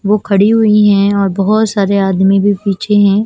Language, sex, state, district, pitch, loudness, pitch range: Hindi, female, Chandigarh, Chandigarh, 200 Hz, -11 LUFS, 195-210 Hz